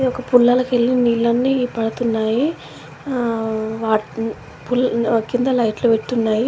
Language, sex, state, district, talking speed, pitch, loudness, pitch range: Telugu, female, Telangana, Karimnagar, 110 wpm, 235 Hz, -18 LUFS, 225-250 Hz